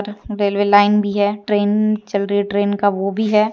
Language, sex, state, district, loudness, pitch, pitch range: Hindi, female, Jharkhand, Deoghar, -17 LUFS, 205 Hz, 205-210 Hz